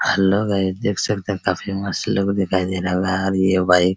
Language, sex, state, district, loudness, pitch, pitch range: Hindi, male, Bihar, Araria, -20 LUFS, 95 Hz, 95-100 Hz